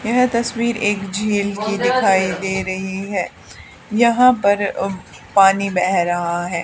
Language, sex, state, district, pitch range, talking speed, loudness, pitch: Hindi, female, Haryana, Charkhi Dadri, 185-220 Hz, 145 wpm, -18 LUFS, 195 Hz